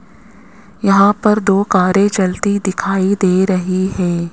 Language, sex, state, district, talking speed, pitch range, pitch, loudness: Hindi, male, Rajasthan, Jaipur, 125 wpm, 185-200 Hz, 195 Hz, -14 LUFS